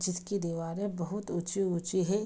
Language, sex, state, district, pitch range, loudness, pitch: Hindi, female, Bihar, Saharsa, 175-200 Hz, -33 LUFS, 185 Hz